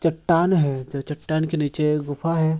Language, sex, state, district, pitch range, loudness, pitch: Hindi, male, Bihar, Supaul, 145-165 Hz, -22 LUFS, 155 Hz